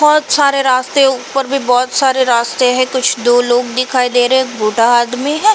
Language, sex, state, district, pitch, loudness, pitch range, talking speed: Hindi, female, Uttar Pradesh, Jalaun, 255 Hz, -12 LUFS, 245-275 Hz, 250 wpm